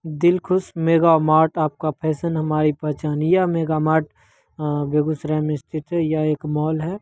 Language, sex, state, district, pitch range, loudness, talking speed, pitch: Maithili, male, Bihar, Begusarai, 155-165 Hz, -20 LUFS, 170 wpm, 155 Hz